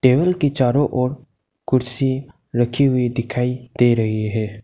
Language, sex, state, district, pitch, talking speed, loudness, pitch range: Hindi, male, Arunachal Pradesh, Lower Dibang Valley, 125 Hz, 140 wpm, -19 LUFS, 120-135 Hz